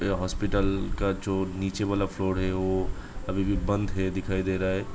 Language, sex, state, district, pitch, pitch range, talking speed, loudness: Hindi, male, Uttar Pradesh, Budaun, 95 Hz, 95-100 Hz, 205 wpm, -28 LUFS